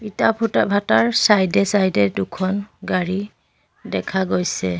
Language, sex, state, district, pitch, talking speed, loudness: Assamese, female, Assam, Sonitpur, 190 Hz, 135 wpm, -19 LUFS